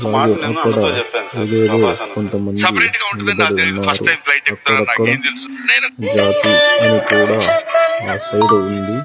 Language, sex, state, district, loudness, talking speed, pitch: Telugu, male, Andhra Pradesh, Sri Satya Sai, -14 LUFS, 80 wpm, 115 Hz